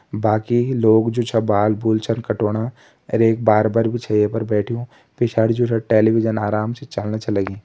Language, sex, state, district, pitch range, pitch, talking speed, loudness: Hindi, male, Uttarakhand, Tehri Garhwal, 105-115 Hz, 110 Hz, 190 wpm, -19 LUFS